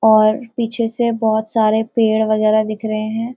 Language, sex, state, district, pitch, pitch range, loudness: Hindi, female, Uttarakhand, Uttarkashi, 220 Hz, 215-230 Hz, -17 LUFS